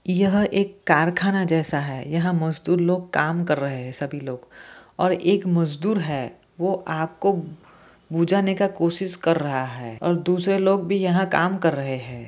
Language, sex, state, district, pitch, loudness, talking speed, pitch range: Hindi, male, Jharkhand, Jamtara, 170 Hz, -22 LUFS, 175 wpm, 150-190 Hz